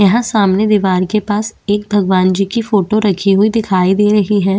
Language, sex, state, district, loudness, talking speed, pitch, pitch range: Hindi, female, Chhattisgarh, Bastar, -13 LUFS, 210 wpm, 205 Hz, 195-210 Hz